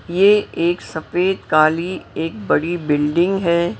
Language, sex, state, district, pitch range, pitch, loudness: Hindi, female, Maharashtra, Mumbai Suburban, 155-180 Hz, 170 Hz, -18 LUFS